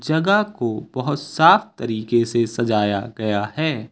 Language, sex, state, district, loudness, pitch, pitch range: Hindi, male, Uttar Pradesh, Lucknow, -20 LUFS, 120 Hz, 110-150 Hz